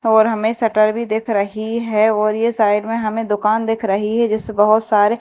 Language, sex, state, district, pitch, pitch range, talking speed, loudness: Hindi, female, Madhya Pradesh, Dhar, 220 Hz, 215-225 Hz, 210 wpm, -17 LUFS